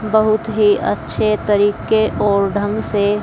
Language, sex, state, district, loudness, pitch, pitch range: Hindi, female, Haryana, Jhajjar, -16 LUFS, 210 Hz, 205-215 Hz